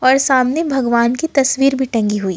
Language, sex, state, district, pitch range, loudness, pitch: Hindi, female, Jharkhand, Ranchi, 235-275 Hz, -15 LUFS, 260 Hz